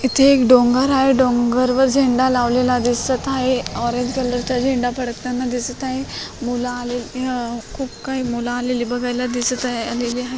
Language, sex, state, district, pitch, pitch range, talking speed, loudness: Marathi, female, Maharashtra, Solapur, 250 Hz, 245-260 Hz, 155 wpm, -19 LUFS